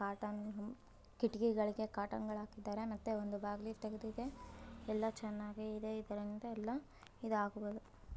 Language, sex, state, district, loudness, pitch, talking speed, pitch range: Kannada, male, Karnataka, Bellary, -43 LUFS, 215 Hz, 80 wpm, 210-220 Hz